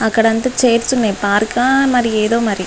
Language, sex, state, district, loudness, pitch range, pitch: Telugu, female, Andhra Pradesh, Visakhapatnam, -14 LUFS, 215-245 Hz, 230 Hz